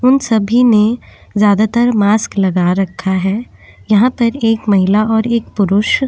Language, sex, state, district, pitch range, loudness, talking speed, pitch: Hindi, female, Chhattisgarh, Korba, 200-235 Hz, -13 LUFS, 160 wpm, 220 Hz